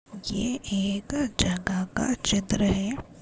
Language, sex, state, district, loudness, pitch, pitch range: Hindi, female, Uttar Pradesh, Gorakhpur, -27 LUFS, 205 Hz, 200-240 Hz